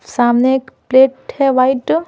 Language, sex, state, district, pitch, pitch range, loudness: Hindi, female, Bihar, Patna, 260 Hz, 255-270 Hz, -14 LUFS